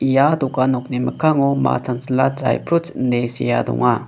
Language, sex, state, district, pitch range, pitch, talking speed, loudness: Garo, male, Meghalaya, West Garo Hills, 125-140 Hz, 130 Hz, 160 wpm, -18 LUFS